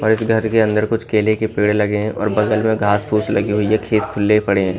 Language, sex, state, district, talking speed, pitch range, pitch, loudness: Hindi, male, Bihar, Katihar, 290 wpm, 105-110 Hz, 105 Hz, -17 LUFS